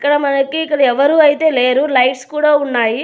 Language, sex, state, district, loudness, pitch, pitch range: Telugu, female, Telangana, Hyderabad, -13 LUFS, 280 Hz, 255-300 Hz